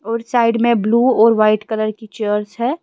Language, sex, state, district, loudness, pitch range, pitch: Hindi, female, Himachal Pradesh, Shimla, -16 LUFS, 215-235 Hz, 225 Hz